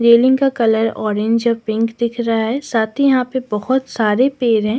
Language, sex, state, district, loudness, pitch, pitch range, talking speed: Hindi, female, Delhi, New Delhi, -16 LUFS, 235 Hz, 225-260 Hz, 210 wpm